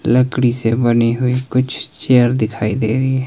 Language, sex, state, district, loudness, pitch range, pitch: Hindi, male, Himachal Pradesh, Shimla, -16 LUFS, 115-130 Hz, 125 Hz